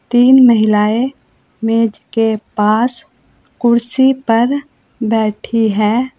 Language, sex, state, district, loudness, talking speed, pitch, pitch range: Hindi, female, Uttar Pradesh, Saharanpur, -14 LUFS, 85 wpm, 230 Hz, 220-250 Hz